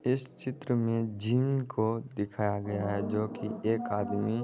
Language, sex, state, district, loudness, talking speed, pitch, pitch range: Magahi, male, Bihar, Jahanabad, -31 LUFS, 175 wpm, 110 Hz, 105-125 Hz